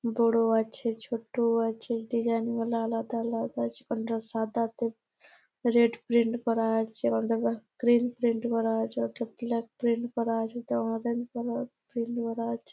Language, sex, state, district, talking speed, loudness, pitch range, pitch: Bengali, female, West Bengal, Malda, 150 wpm, -29 LUFS, 225-235 Hz, 230 Hz